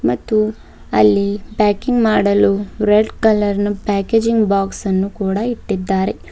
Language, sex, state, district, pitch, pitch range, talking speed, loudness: Kannada, female, Karnataka, Bidar, 205 Hz, 195-215 Hz, 105 wpm, -16 LUFS